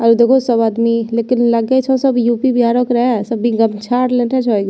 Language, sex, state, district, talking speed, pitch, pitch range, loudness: Angika, female, Bihar, Bhagalpur, 215 wpm, 240 Hz, 230-250 Hz, -14 LUFS